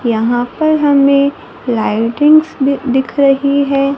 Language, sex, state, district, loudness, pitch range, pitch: Hindi, female, Maharashtra, Gondia, -12 LUFS, 245-285 Hz, 275 Hz